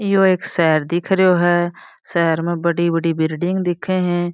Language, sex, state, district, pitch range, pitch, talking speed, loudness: Marwari, female, Rajasthan, Churu, 170-180 Hz, 175 Hz, 180 wpm, -18 LUFS